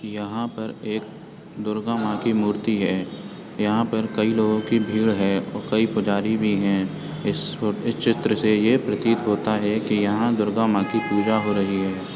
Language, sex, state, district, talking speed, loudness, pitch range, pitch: Hindi, male, Uttar Pradesh, Etah, 185 wpm, -22 LUFS, 105-110 Hz, 110 Hz